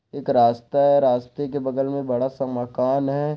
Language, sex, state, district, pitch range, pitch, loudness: Hindi, male, Bihar, Saharsa, 125-140 Hz, 135 Hz, -21 LUFS